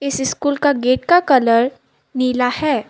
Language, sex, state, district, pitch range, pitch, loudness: Hindi, female, Assam, Sonitpur, 250-285 Hz, 265 Hz, -16 LUFS